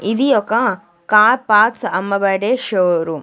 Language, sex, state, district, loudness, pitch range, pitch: Telugu, female, Andhra Pradesh, Sri Satya Sai, -15 LUFS, 190-230 Hz, 210 Hz